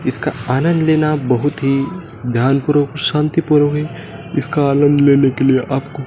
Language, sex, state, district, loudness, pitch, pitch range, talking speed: Hindi, male, Madhya Pradesh, Dhar, -15 LUFS, 145 Hz, 135-150 Hz, 160 wpm